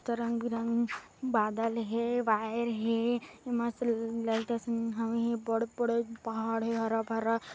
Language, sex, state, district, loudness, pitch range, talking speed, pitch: Hindi, female, Chhattisgarh, Kabirdham, -32 LUFS, 225-235 Hz, 150 wpm, 230 Hz